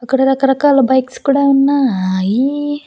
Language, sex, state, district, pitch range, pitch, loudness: Telugu, female, Andhra Pradesh, Annamaya, 255-280 Hz, 270 Hz, -13 LUFS